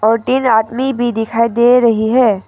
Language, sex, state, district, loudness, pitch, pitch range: Hindi, female, Arunachal Pradesh, Papum Pare, -13 LUFS, 235 Hz, 225-250 Hz